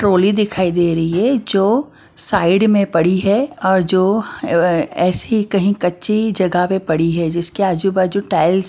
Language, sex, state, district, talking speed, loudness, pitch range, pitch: Hindi, female, Maharashtra, Washim, 180 wpm, -16 LUFS, 175-205 Hz, 190 Hz